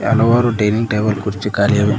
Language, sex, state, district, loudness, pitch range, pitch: Kannada, male, Karnataka, Koppal, -16 LUFS, 105-115 Hz, 105 Hz